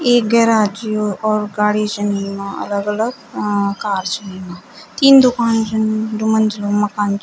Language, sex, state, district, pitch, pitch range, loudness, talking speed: Garhwali, female, Uttarakhand, Tehri Garhwal, 210 Hz, 205-220 Hz, -16 LUFS, 155 wpm